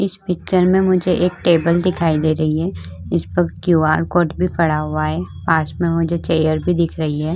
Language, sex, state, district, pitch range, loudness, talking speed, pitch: Hindi, female, Uttar Pradesh, Budaun, 155-175 Hz, -17 LUFS, 210 wpm, 165 Hz